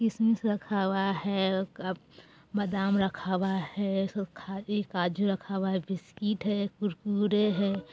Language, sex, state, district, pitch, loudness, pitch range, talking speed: Bajjika, female, Bihar, Vaishali, 195 Hz, -30 LUFS, 190-205 Hz, 120 wpm